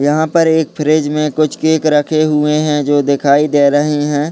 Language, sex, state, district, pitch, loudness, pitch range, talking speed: Hindi, male, Uttar Pradesh, Deoria, 150 Hz, -13 LUFS, 145-155 Hz, 210 wpm